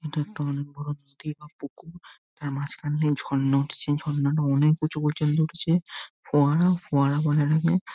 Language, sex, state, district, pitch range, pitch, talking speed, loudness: Bengali, male, West Bengal, Jhargram, 145-155 Hz, 150 Hz, 160 wpm, -25 LUFS